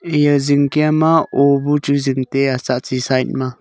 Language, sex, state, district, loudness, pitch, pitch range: Wancho, male, Arunachal Pradesh, Longding, -16 LUFS, 140 Hz, 130-145 Hz